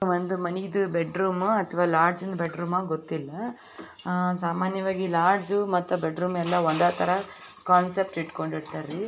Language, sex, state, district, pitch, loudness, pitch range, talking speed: Kannada, female, Karnataka, Bijapur, 180 Hz, -26 LUFS, 170-190 Hz, 100 wpm